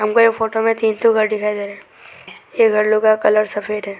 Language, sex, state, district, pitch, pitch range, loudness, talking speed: Hindi, male, Arunachal Pradesh, Lower Dibang Valley, 215 Hz, 210-225 Hz, -16 LUFS, 255 wpm